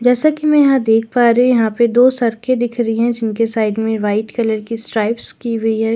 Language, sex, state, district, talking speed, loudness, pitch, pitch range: Hindi, female, Delhi, New Delhi, 250 wpm, -15 LUFS, 230 Hz, 225-245 Hz